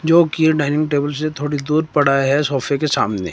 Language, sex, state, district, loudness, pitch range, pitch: Hindi, male, Himachal Pradesh, Shimla, -17 LUFS, 145-155 Hz, 150 Hz